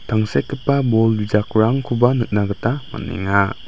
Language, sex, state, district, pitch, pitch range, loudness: Garo, male, Meghalaya, West Garo Hills, 115 Hz, 105-130 Hz, -19 LUFS